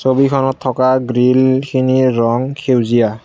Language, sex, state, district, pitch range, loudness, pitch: Assamese, male, Assam, Kamrup Metropolitan, 125-130 Hz, -14 LUFS, 130 Hz